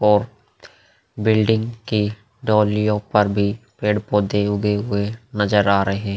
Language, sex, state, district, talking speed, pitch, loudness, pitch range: Hindi, male, Uttar Pradesh, Hamirpur, 135 wpm, 105 Hz, -20 LUFS, 105-110 Hz